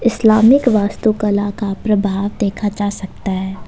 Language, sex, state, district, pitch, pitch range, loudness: Hindi, female, Jharkhand, Ranchi, 205 Hz, 200-220 Hz, -16 LUFS